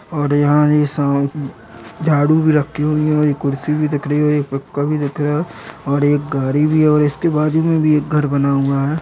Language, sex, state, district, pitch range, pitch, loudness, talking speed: Hindi, female, Uttar Pradesh, Jalaun, 140-150 Hz, 150 Hz, -16 LUFS, 240 wpm